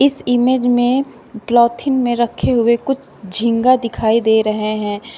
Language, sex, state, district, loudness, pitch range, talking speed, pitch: Hindi, female, Uttar Pradesh, Shamli, -16 LUFS, 225-250 Hz, 150 wpm, 235 Hz